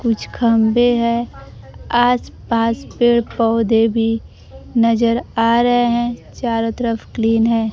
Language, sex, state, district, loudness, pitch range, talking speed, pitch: Hindi, female, Bihar, Kaimur, -17 LUFS, 225-240 Hz, 125 wpm, 230 Hz